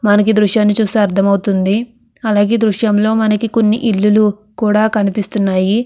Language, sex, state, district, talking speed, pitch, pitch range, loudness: Telugu, female, Andhra Pradesh, Krishna, 125 wpm, 210 Hz, 205-220 Hz, -14 LUFS